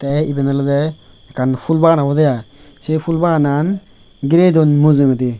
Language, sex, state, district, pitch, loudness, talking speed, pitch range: Chakma, male, Tripura, West Tripura, 145 Hz, -15 LUFS, 145 wpm, 135-160 Hz